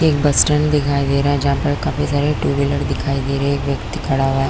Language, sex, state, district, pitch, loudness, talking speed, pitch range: Hindi, female, Chhattisgarh, Korba, 140 Hz, -17 LUFS, 280 wpm, 135-145 Hz